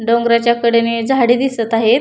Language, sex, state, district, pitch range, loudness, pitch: Marathi, female, Maharashtra, Pune, 230-240 Hz, -14 LUFS, 235 Hz